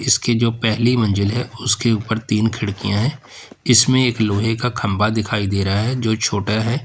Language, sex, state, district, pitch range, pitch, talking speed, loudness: Hindi, male, Uttar Pradesh, Lalitpur, 105-120 Hz, 115 Hz, 195 wpm, -18 LUFS